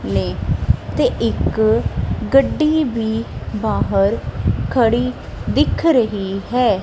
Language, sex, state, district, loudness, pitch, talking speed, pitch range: Punjabi, female, Punjab, Kapurthala, -18 LUFS, 230 Hz, 90 wpm, 220-265 Hz